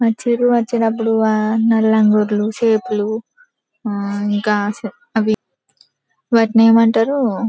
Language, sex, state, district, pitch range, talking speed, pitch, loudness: Telugu, female, Telangana, Karimnagar, 210-230 Hz, 80 wpm, 225 Hz, -16 LUFS